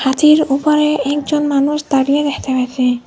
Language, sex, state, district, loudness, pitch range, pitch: Bengali, female, Assam, Hailakandi, -14 LUFS, 265-300 Hz, 285 Hz